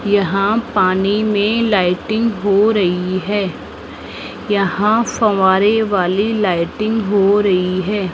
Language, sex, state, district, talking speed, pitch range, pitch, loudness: Hindi, female, Rajasthan, Jaipur, 105 wpm, 190-215 Hz, 205 Hz, -16 LUFS